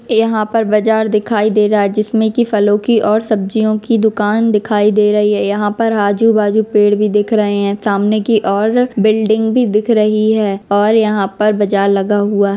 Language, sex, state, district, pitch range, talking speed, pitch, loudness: Hindi, female, Rajasthan, Churu, 205-220 Hz, 205 wpm, 215 Hz, -13 LUFS